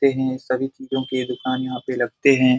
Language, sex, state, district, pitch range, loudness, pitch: Hindi, male, Bihar, Jamui, 125-135 Hz, -22 LUFS, 130 Hz